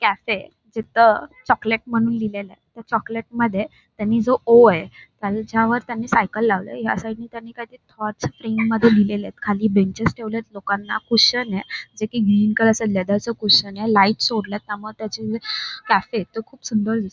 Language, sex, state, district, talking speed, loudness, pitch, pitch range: Marathi, female, Maharashtra, Dhule, 170 wpm, -20 LUFS, 220 Hz, 210-230 Hz